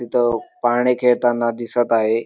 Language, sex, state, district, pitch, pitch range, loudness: Marathi, male, Maharashtra, Dhule, 120 Hz, 115-120 Hz, -18 LUFS